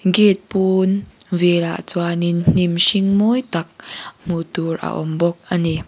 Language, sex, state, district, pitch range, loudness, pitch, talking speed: Mizo, female, Mizoram, Aizawl, 170-190 Hz, -18 LUFS, 175 Hz, 155 wpm